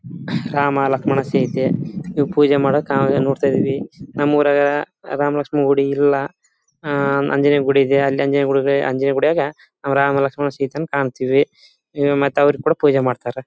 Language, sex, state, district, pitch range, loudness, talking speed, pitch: Kannada, male, Karnataka, Bellary, 135-145 Hz, -18 LUFS, 135 wpm, 140 Hz